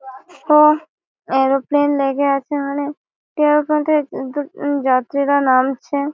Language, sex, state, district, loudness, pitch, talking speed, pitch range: Bengali, female, West Bengal, Malda, -17 LUFS, 285 Hz, 135 wpm, 270-300 Hz